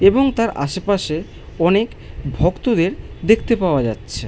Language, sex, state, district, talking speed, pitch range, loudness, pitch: Bengali, male, West Bengal, Malda, 110 wpm, 140-220 Hz, -18 LUFS, 190 Hz